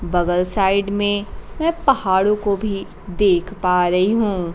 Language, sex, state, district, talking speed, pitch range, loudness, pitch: Hindi, female, Bihar, Kaimur, 145 wpm, 180-205 Hz, -19 LUFS, 195 Hz